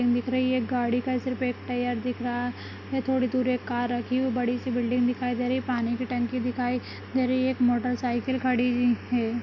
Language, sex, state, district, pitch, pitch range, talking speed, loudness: Hindi, female, Maharashtra, Nagpur, 245 Hz, 245-255 Hz, 215 wpm, -27 LUFS